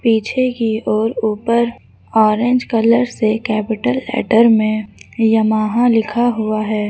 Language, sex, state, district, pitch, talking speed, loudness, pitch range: Hindi, male, Uttar Pradesh, Lucknow, 225 Hz, 120 wpm, -16 LUFS, 215-235 Hz